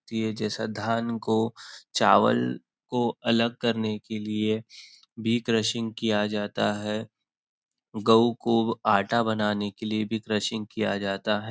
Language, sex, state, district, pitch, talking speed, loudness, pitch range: Hindi, male, Maharashtra, Nagpur, 110 Hz, 140 wpm, -26 LUFS, 105-115 Hz